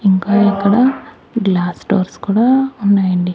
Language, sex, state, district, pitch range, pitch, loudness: Telugu, male, Andhra Pradesh, Annamaya, 190-225 Hz, 200 Hz, -14 LUFS